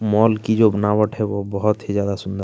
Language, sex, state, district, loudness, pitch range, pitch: Hindi, male, Chhattisgarh, Kabirdham, -19 LUFS, 100-110 Hz, 105 Hz